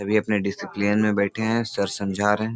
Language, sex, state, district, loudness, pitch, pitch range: Hindi, male, Bihar, Supaul, -23 LUFS, 105 Hz, 100-110 Hz